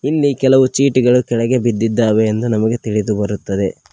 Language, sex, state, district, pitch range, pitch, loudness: Kannada, male, Karnataka, Koppal, 110-130 Hz, 115 Hz, -15 LUFS